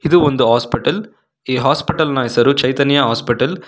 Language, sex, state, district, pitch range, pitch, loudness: Kannada, male, Karnataka, Bangalore, 120-160 Hz, 140 Hz, -15 LUFS